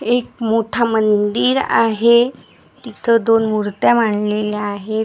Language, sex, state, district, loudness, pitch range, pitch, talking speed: Marathi, female, Maharashtra, Gondia, -16 LUFS, 210-235 Hz, 225 Hz, 105 wpm